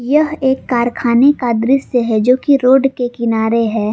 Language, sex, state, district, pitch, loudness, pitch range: Hindi, female, Jharkhand, Palamu, 245 Hz, -14 LUFS, 230-270 Hz